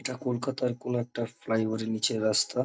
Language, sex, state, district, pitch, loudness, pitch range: Bengali, male, West Bengal, North 24 Parganas, 120 Hz, -29 LUFS, 110-125 Hz